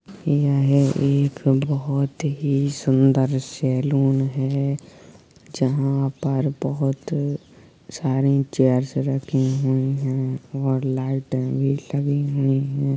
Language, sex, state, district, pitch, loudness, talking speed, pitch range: Hindi, female, Uttar Pradesh, Jalaun, 135 Hz, -22 LUFS, 95 wpm, 135-140 Hz